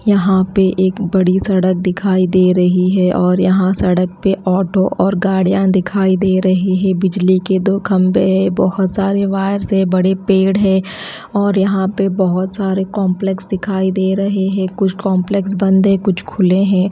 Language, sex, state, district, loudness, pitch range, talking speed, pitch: Hindi, female, Haryana, Rohtak, -14 LUFS, 185-195 Hz, 175 wpm, 190 Hz